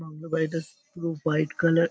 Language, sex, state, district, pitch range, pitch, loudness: Bengali, male, West Bengal, Paschim Medinipur, 160-165 Hz, 165 Hz, -27 LUFS